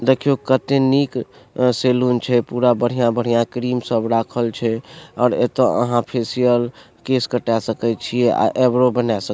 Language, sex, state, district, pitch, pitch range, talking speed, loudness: Maithili, male, Bihar, Supaul, 125 Hz, 115-125 Hz, 160 wpm, -18 LUFS